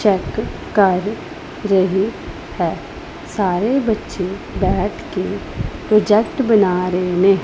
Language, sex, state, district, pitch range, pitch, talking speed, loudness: Punjabi, female, Punjab, Pathankot, 190-215 Hz, 200 Hz, 95 wpm, -18 LUFS